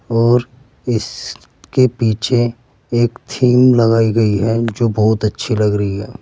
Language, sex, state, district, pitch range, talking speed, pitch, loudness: Hindi, male, Uttar Pradesh, Saharanpur, 110-125 Hz, 135 wpm, 115 Hz, -15 LUFS